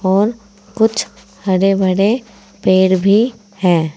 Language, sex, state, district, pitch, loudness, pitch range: Hindi, female, Uttar Pradesh, Saharanpur, 200 Hz, -15 LUFS, 185-215 Hz